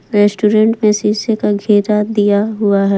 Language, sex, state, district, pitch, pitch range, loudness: Hindi, female, Jharkhand, Palamu, 210 Hz, 205-215 Hz, -13 LUFS